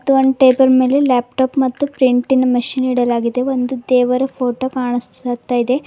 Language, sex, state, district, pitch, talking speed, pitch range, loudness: Kannada, female, Karnataka, Bidar, 255 Hz, 145 wpm, 245-265 Hz, -15 LUFS